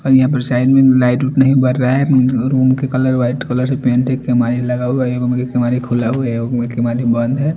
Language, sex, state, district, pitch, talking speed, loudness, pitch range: Hindi, male, Bihar, Katihar, 125 Hz, 295 wpm, -15 LUFS, 125-130 Hz